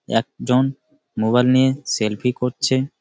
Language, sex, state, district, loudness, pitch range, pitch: Bengali, male, West Bengal, Malda, -19 LUFS, 125-130 Hz, 125 Hz